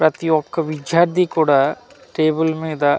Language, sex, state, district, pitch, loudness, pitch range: Telugu, male, Andhra Pradesh, Manyam, 155 Hz, -18 LUFS, 155-165 Hz